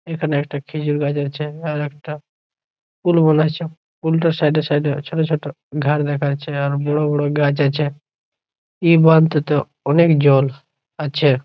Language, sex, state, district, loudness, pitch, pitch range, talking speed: Bengali, male, West Bengal, Jhargram, -18 LUFS, 150 Hz, 145-155 Hz, 170 wpm